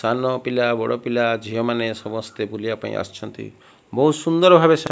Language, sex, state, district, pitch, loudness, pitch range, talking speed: Odia, male, Odisha, Malkangiri, 120 Hz, -20 LUFS, 110-150 Hz, 160 wpm